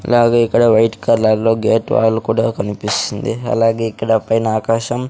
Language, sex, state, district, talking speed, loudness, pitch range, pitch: Telugu, male, Andhra Pradesh, Sri Satya Sai, 140 wpm, -15 LUFS, 110-115 Hz, 115 Hz